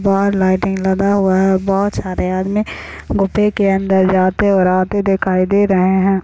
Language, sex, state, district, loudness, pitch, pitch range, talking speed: Hindi, female, Chhattisgarh, Bastar, -15 LUFS, 195 Hz, 190-200 Hz, 175 wpm